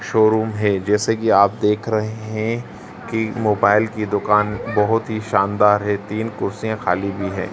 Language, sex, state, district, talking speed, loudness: Hindi, female, Madhya Pradesh, Dhar, 165 wpm, -19 LUFS